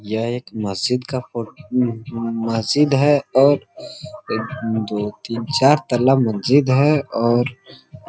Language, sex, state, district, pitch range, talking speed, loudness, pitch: Hindi, male, Jharkhand, Sahebganj, 115-140 Hz, 140 wpm, -19 LUFS, 125 Hz